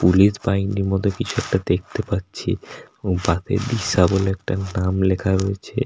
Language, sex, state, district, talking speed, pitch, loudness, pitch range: Bengali, male, West Bengal, Paschim Medinipur, 155 wpm, 95 Hz, -21 LUFS, 95-100 Hz